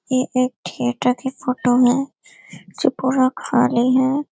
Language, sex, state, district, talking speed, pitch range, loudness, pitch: Hindi, female, Uttar Pradesh, Varanasi, 140 wpm, 245-265 Hz, -19 LUFS, 255 Hz